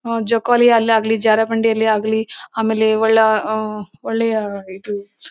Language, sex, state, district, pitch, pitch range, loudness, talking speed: Kannada, female, Karnataka, Bellary, 220 Hz, 215-225 Hz, -17 LUFS, 90 wpm